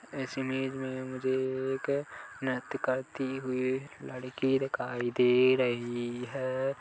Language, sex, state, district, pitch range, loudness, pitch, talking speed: Hindi, male, Chhattisgarh, Kabirdham, 125-135 Hz, -31 LUFS, 130 Hz, 125 wpm